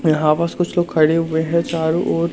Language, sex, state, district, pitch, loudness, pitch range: Hindi, male, Madhya Pradesh, Umaria, 165 Hz, -18 LUFS, 160-170 Hz